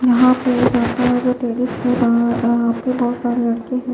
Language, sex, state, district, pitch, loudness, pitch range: Hindi, female, Maharashtra, Mumbai Suburban, 245 Hz, -17 LUFS, 235-250 Hz